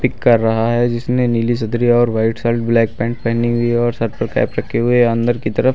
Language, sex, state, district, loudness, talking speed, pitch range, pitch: Hindi, male, Uttar Pradesh, Lucknow, -16 LUFS, 250 wpm, 115-120 Hz, 120 Hz